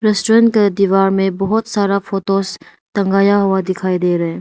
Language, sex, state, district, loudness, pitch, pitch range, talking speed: Hindi, female, Arunachal Pradesh, Lower Dibang Valley, -15 LUFS, 195 Hz, 190-205 Hz, 175 wpm